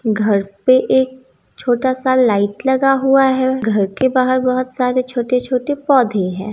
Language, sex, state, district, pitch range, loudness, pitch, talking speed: Hindi, female, Bihar, East Champaran, 215-260 Hz, -16 LUFS, 255 Hz, 155 wpm